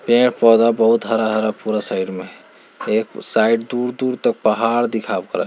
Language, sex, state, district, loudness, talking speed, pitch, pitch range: Hindi, male, Bihar, Jamui, -18 LUFS, 145 wpm, 115 Hz, 110-120 Hz